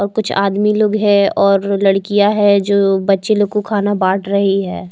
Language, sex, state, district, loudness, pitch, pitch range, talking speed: Hindi, female, Maharashtra, Mumbai Suburban, -14 LUFS, 200 Hz, 195-205 Hz, 195 wpm